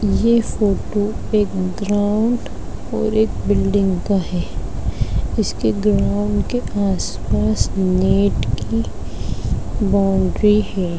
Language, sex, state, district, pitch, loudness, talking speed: Hindi, male, Bihar, Darbhanga, 175 Hz, -19 LUFS, 95 wpm